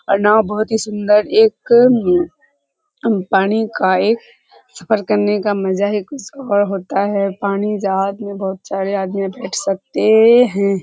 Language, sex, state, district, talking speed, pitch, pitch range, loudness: Hindi, female, Bihar, Kishanganj, 155 wpm, 205 Hz, 195-220 Hz, -16 LUFS